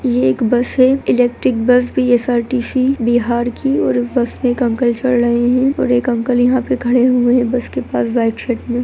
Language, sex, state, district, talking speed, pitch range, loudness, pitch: Hindi, female, Bihar, Begusarai, 215 wpm, 240-255 Hz, -15 LUFS, 245 Hz